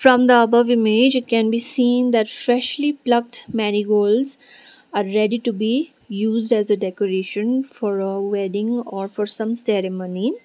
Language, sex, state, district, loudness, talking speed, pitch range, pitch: English, female, Sikkim, Gangtok, -19 LUFS, 155 wpm, 210-245 Hz, 230 Hz